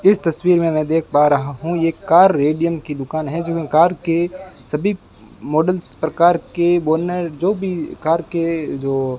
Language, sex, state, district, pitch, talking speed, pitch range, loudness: Hindi, male, Rajasthan, Bikaner, 165 Hz, 185 wpm, 155-175 Hz, -18 LUFS